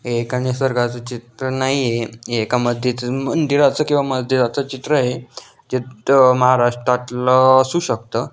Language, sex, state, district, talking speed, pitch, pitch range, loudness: Marathi, male, Maharashtra, Dhule, 115 wpm, 125 Hz, 120-130 Hz, -18 LUFS